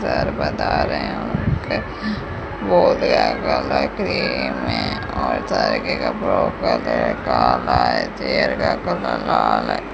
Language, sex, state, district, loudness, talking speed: Hindi, female, Rajasthan, Bikaner, -20 LUFS, 95 wpm